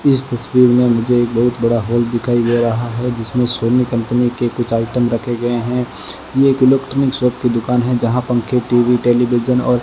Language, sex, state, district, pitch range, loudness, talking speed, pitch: Hindi, male, Rajasthan, Bikaner, 120-125 Hz, -15 LUFS, 205 wpm, 120 Hz